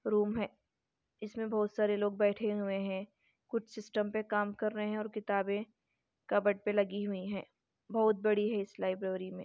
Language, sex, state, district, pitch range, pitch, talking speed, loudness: Hindi, female, Chhattisgarh, Bastar, 200-215 Hz, 210 Hz, 185 wpm, -34 LUFS